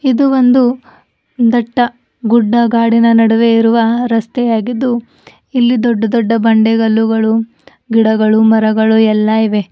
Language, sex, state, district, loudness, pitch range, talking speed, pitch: Kannada, female, Karnataka, Bidar, -12 LUFS, 220-240 Hz, 100 wpm, 230 Hz